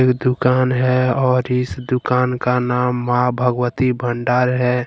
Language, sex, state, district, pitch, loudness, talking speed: Hindi, male, Jharkhand, Ranchi, 125 Hz, -18 LUFS, 135 wpm